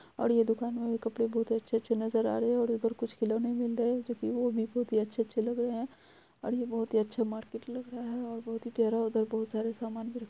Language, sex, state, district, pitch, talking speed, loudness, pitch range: Hindi, female, Bihar, Araria, 230 Hz, 225 wpm, -32 LUFS, 225-240 Hz